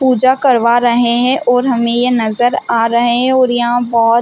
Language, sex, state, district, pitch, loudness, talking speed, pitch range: Hindi, female, Chhattisgarh, Balrampur, 240 Hz, -12 LUFS, 215 wpm, 235-250 Hz